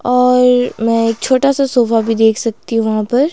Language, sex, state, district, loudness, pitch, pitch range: Hindi, female, Himachal Pradesh, Shimla, -13 LUFS, 240 Hz, 225-250 Hz